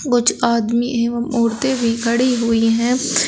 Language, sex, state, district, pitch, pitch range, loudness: Hindi, female, Uttar Pradesh, Shamli, 235 Hz, 230-250 Hz, -17 LUFS